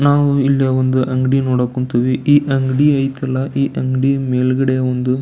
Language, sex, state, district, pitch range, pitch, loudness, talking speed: Kannada, male, Karnataka, Belgaum, 130-135 Hz, 130 Hz, -16 LUFS, 150 wpm